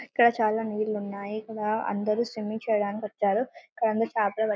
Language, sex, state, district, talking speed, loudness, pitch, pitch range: Telugu, female, Telangana, Karimnagar, 155 wpm, -28 LUFS, 215 Hz, 210-225 Hz